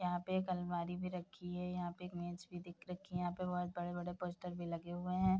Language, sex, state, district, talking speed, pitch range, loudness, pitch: Hindi, female, Bihar, Bhagalpur, 255 wpm, 175-180 Hz, -42 LUFS, 180 Hz